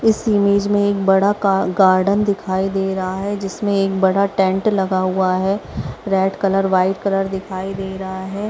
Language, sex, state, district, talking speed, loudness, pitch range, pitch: Hindi, female, Chhattisgarh, Raigarh, 185 wpm, -18 LUFS, 190-200 Hz, 195 Hz